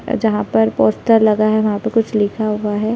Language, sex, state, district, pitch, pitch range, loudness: Hindi, female, Chhattisgarh, Sarguja, 215 Hz, 210-220 Hz, -16 LUFS